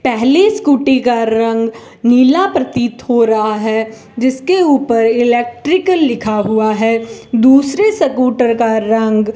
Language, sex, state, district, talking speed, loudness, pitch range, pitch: Hindi, female, Rajasthan, Bikaner, 130 wpm, -13 LUFS, 225-270 Hz, 240 Hz